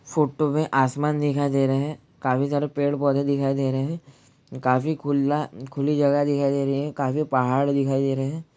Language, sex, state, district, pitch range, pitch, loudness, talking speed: Hindi, male, Bihar, Jahanabad, 135-145 Hz, 140 Hz, -23 LUFS, 195 wpm